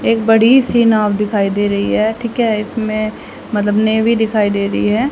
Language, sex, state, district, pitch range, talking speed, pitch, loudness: Hindi, female, Haryana, Jhajjar, 205-230 Hz, 200 wpm, 215 Hz, -14 LUFS